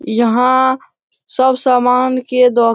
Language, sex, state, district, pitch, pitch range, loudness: Hindi, male, Bihar, Jamui, 255 Hz, 245-260 Hz, -13 LUFS